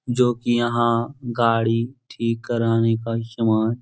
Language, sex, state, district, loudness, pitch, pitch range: Hindi, male, Bihar, Jahanabad, -21 LUFS, 115 Hz, 115-120 Hz